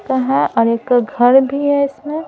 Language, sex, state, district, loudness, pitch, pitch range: Hindi, female, Bihar, Patna, -14 LUFS, 270 Hz, 245-285 Hz